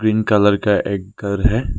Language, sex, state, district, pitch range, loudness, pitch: Hindi, male, Arunachal Pradesh, Lower Dibang Valley, 100-110 Hz, -17 LUFS, 105 Hz